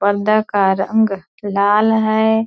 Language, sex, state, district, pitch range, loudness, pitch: Hindi, female, Bihar, Purnia, 200-220 Hz, -16 LUFS, 210 Hz